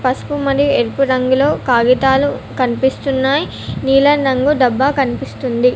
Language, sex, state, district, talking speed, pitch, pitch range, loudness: Telugu, female, Telangana, Komaram Bheem, 105 wpm, 265 Hz, 255-275 Hz, -15 LUFS